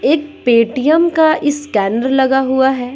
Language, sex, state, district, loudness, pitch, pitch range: Hindi, female, Bihar, West Champaran, -14 LUFS, 265 Hz, 250-300 Hz